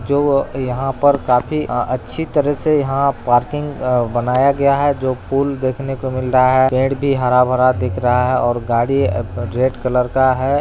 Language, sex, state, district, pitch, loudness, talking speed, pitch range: Hindi, male, Bihar, Araria, 130 Hz, -16 LUFS, 185 wpm, 125-140 Hz